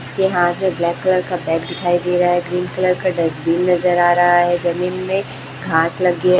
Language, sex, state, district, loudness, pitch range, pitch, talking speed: Hindi, female, Chhattisgarh, Raipur, -17 LUFS, 175-180 Hz, 175 Hz, 225 wpm